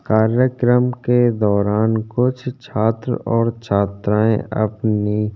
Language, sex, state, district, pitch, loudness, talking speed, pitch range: Hindi, male, Chhattisgarh, Korba, 110 Hz, -18 LUFS, 100 wpm, 105-125 Hz